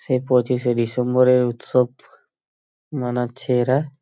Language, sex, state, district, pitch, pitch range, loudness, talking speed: Bengali, male, West Bengal, Purulia, 125 Hz, 125-130 Hz, -20 LUFS, 105 wpm